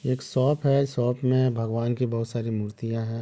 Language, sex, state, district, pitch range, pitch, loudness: Hindi, male, Chhattisgarh, Bilaspur, 115-130 Hz, 120 Hz, -25 LUFS